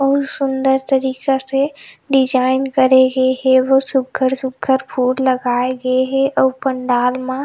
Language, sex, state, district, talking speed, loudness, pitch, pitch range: Chhattisgarhi, female, Chhattisgarh, Rajnandgaon, 145 wpm, -16 LUFS, 265 Hz, 260-270 Hz